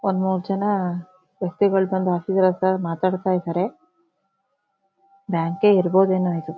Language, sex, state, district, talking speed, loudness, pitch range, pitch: Kannada, female, Karnataka, Shimoga, 120 wpm, -21 LUFS, 180-195 Hz, 190 Hz